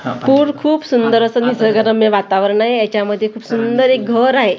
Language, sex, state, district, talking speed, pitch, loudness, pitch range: Marathi, female, Maharashtra, Gondia, 170 wpm, 230 Hz, -14 LUFS, 220-255 Hz